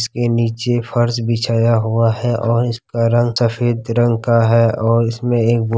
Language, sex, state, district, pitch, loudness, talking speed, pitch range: Hindi, male, Bihar, Kishanganj, 115 Hz, -16 LUFS, 175 wpm, 115-120 Hz